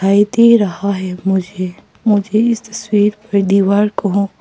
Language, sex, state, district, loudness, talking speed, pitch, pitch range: Hindi, female, Arunachal Pradesh, Papum Pare, -15 LUFS, 150 wpm, 200 Hz, 195-215 Hz